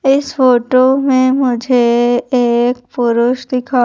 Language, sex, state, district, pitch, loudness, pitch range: Hindi, female, Madhya Pradesh, Umaria, 250 Hz, -13 LUFS, 240-260 Hz